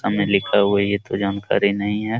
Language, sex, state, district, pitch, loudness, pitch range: Hindi, male, Bihar, Jamui, 100 Hz, -19 LUFS, 100-105 Hz